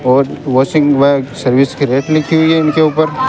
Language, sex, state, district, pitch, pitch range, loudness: Hindi, male, Rajasthan, Bikaner, 140 Hz, 130-155 Hz, -12 LUFS